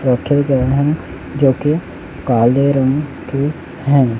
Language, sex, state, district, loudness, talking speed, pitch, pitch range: Hindi, male, Chhattisgarh, Raipur, -16 LUFS, 130 wpm, 140 Hz, 130-145 Hz